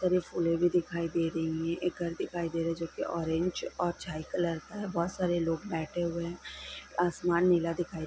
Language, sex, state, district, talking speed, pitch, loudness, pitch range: Hindi, female, Bihar, Sitamarhi, 215 wpm, 170 Hz, -32 LUFS, 165-175 Hz